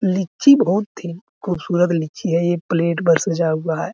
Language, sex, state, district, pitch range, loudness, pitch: Hindi, male, Bihar, Araria, 165-190 Hz, -18 LUFS, 175 Hz